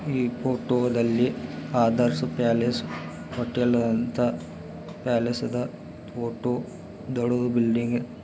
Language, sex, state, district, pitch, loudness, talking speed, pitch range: Kannada, male, Karnataka, Belgaum, 120 Hz, -26 LUFS, 65 wpm, 115-125 Hz